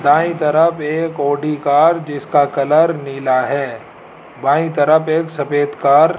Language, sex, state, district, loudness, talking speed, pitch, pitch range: Hindi, male, Rajasthan, Jaipur, -15 LUFS, 145 wpm, 150 Hz, 145-160 Hz